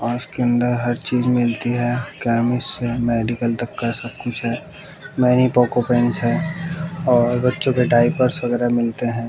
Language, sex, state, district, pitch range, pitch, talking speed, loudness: Hindi, male, Bihar, West Champaran, 120-125 Hz, 120 Hz, 155 wpm, -19 LUFS